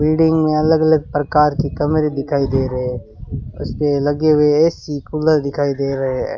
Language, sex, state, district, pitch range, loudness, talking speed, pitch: Hindi, male, Rajasthan, Bikaner, 135-155 Hz, -17 LUFS, 195 wpm, 145 Hz